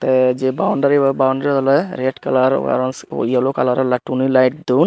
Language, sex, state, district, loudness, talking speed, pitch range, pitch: Chakma, male, Tripura, Dhalai, -17 LUFS, 185 wpm, 130-135 Hz, 130 Hz